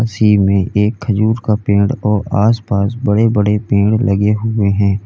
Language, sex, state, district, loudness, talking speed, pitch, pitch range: Hindi, male, Uttar Pradesh, Lalitpur, -14 LUFS, 165 wpm, 105 Hz, 100-110 Hz